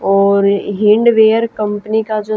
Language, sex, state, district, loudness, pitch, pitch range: Hindi, female, Haryana, Jhajjar, -13 LUFS, 210 Hz, 200-220 Hz